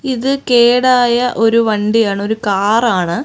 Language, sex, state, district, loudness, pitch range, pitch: Malayalam, female, Kerala, Kozhikode, -13 LUFS, 210-250 Hz, 230 Hz